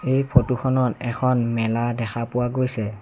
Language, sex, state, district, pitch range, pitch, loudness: Assamese, male, Assam, Sonitpur, 115-130 Hz, 120 Hz, -22 LUFS